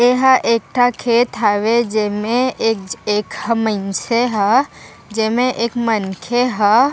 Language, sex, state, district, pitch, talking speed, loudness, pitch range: Chhattisgarhi, female, Chhattisgarh, Raigarh, 230 Hz, 110 wpm, -17 LUFS, 210-245 Hz